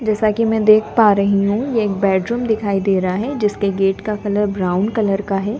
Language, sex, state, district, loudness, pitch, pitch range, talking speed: Hindi, female, Delhi, New Delhi, -17 LUFS, 205 Hz, 195-220 Hz, 235 wpm